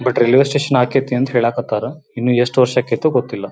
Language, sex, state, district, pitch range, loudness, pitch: Kannada, male, Karnataka, Belgaum, 120-135 Hz, -16 LUFS, 125 Hz